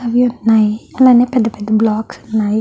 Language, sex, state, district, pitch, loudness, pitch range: Telugu, female, Andhra Pradesh, Chittoor, 225 Hz, -14 LUFS, 215-240 Hz